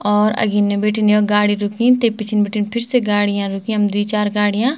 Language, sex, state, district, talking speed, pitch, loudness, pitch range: Garhwali, female, Uttarakhand, Tehri Garhwal, 200 wpm, 210 Hz, -16 LUFS, 205-215 Hz